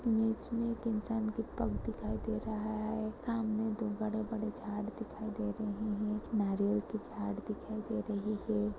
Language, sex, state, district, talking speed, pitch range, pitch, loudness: Hindi, female, Goa, North and South Goa, 175 wpm, 210-225 Hz, 215 Hz, -35 LUFS